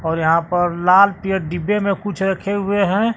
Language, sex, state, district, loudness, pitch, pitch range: Hindi, male, Bihar, West Champaran, -17 LUFS, 195 Hz, 175-200 Hz